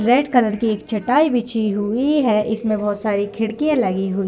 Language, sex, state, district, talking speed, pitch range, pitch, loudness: Hindi, female, Bihar, Kishanganj, 210 wpm, 210-245 Hz, 220 Hz, -19 LUFS